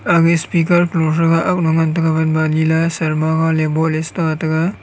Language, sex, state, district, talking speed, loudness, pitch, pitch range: Wancho, male, Arunachal Pradesh, Longding, 135 wpm, -16 LUFS, 160 Hz, 160-165 Hz